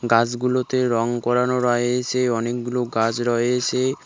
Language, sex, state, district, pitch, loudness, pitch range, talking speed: Bengali, male, West Bengal, Cooch Behar, 120 Hz, -21 LUFS, 120-125 Hz, 105 wpm